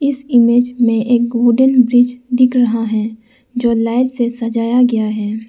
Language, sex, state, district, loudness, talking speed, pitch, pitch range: Hindi, female, Arunachal Pradesh, Lower Dibang Valley, -14 LUFS, 165 wpm, 240 Hz, 230-250 Hz